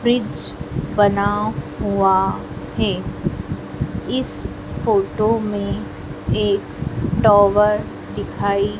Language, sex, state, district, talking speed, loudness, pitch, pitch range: Hindi, female, Madhya Pradesh, Dhar, 70 wpm, -20 LUFS, 205 Hz, 200-210 Hz